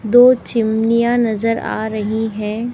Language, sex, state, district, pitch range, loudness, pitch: Hindi, female, Madhya Pradesh, Dhar, 220-235 Hz, -16 LUFS, 225 Hz